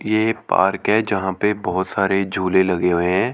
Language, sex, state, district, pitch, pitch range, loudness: Hindi, male, Chandigarh, Chandigarh, 95 Hz, 95-105 Hz, -19 LUFS